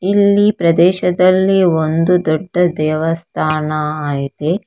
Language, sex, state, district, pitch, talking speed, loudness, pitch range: Kannada, female, Karnataka, Bangalore, 170 Hz, 75 wpm, -14 LUFS, 155-185 Hz